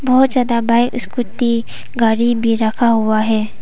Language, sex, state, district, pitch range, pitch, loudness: Hindi, female, Arunachal Pradesh, Papum Pare, 225-245 Hz, 235 Hz, -16 LUFS